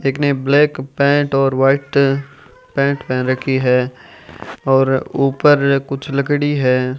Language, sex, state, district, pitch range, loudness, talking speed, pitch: Hindi, male, Rajasthan, Bikaner, 130-140 Hz, -16 LUFS, 130 wpm, 135 Hz